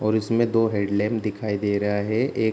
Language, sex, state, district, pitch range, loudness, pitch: Hindi, male, Bihar, Kishanganj, 105-115 Hz, -23 LUFS, 105 Hz